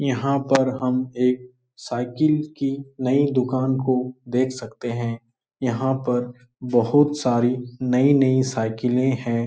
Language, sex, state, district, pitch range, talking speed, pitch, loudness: Hindi, male, Bihar, Jahanabad, 125-130 Hz, 120 wpm, 125 Hz, -22 LUFS